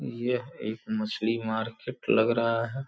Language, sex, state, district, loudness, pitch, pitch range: Hindi, male, Uttar Pradesh, Gorakhpur, -29 LUFS, 115 Hz, 110-130 Hz